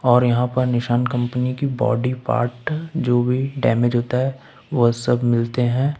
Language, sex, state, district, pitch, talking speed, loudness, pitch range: Hindi, male, Jharkhand, Ranchi, 125 Hz, 170 wpm, -20 LUFS, 120-130 Hz